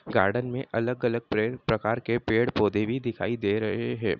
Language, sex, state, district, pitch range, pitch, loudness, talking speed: Hindi, male, Bihar, Madhepura, 105-120 Hz, 115 Hz, -27 LUFS, 170 wpm